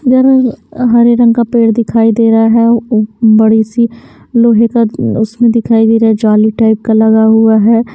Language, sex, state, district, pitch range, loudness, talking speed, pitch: Hindi, female, Himachal Pradesh, Shimla, 220-235 Hz, -9 LUFS, 180 wpm, 230 Hz